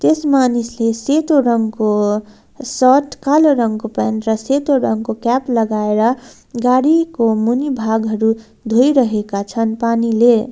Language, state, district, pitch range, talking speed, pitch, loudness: Nepali, West Bengal, Darjeeling, 220-265 Hz, 110 wpm, 235 Hz, -15 LUFS